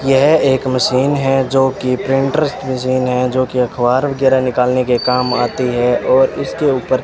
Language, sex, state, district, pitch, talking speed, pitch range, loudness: Hindi, male, Rajasthan, Bikaner, 130 Hz, 185 wpm, 125-135 Hz, -15 LUFS